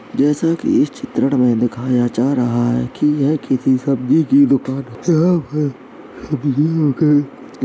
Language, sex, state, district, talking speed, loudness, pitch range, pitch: Hindi, male, Uttar Pradesh, Jalaun, 125 wpm, -16 LUFS, 130-155 Hz, 140 Hz